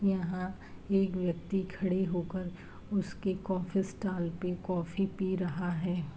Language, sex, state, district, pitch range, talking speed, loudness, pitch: Hindi, female, Uttar Pradesh, Varanasi, 180-190 Hz, 125 wpm, -34 LUFS, 185 Hz